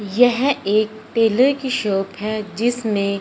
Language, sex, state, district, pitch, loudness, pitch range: Hindi, male, Punjab, Fazilka, 215 Hz, -19 LUFS, 205-245 Hz